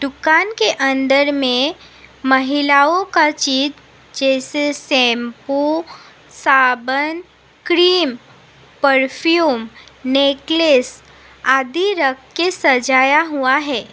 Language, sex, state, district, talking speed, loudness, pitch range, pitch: Hindi, female, Assam, Sonitpur, 80 wpm, -15 LUFS, 265-315 Hz, 280 Hz